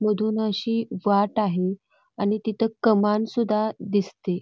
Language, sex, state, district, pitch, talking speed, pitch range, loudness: Marathi, female, Karnataka, Belgaum, 215 Hz, 120 wpm, 205-220 Hz, -24 LUFS